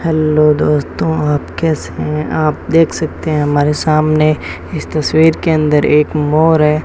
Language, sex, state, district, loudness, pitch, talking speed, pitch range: Hindi, male, Rajasthan, Bikaner, -13 LUFS, 155 Hz, 160 wpm, 150-155 Hz